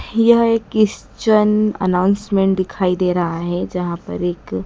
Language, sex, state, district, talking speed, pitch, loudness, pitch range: Hindi, female, Madhya Pradesh, Dhar, 140 wpm, 190 Hz, -17 LUFS, 180-215 Hz